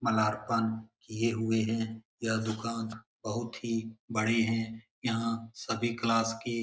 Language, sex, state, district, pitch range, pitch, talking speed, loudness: Hindi, male, Bihar, Lakhisarai, 110-115 Hz, 115 Hz, 135 wpm, -32 LUFS